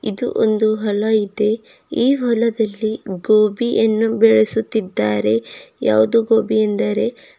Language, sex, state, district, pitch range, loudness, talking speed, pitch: Kannada, female, Karnataka, Bidar, 210-225 Hz, -17 LUFS, 95 wpm, 220 Hz